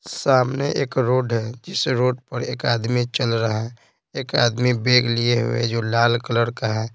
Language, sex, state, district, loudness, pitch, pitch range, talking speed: Hindi, male, Bihar, Patna, -21 LUFS, 120 Hz, 115-125 Hz, 190 wpm